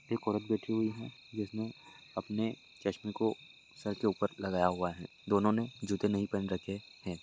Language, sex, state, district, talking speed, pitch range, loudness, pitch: Hindi, male, Bihar, Lakhisarai, 180 wpm, 95-110 Hz, -35 LUFS, 105 Hz